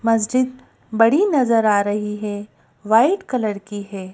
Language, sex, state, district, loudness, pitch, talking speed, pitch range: Hindi, female, Madhya Pradesh, Bhopal, -19 LUFS, 215 Hz, 145 wpm, 205-245 Hz